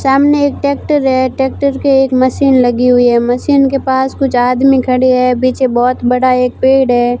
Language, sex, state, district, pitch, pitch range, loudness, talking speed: Hindi, female, Rajasthan, Barmer, 260 Hz, 250-270 Hz, -11 LUFS, 200 wpm